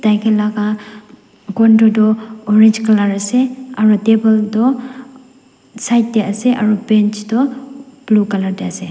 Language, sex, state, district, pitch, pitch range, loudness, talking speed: Nagamese, female, Nagaland, Dimapur, 220 Hz, 210-250 Hz, -14 LUFS, 130 wpm